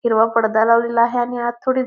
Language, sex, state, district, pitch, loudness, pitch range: Marathi, female, Maharashtra, Pune, 235 Hz, -17 LUFS, 230-240 Hz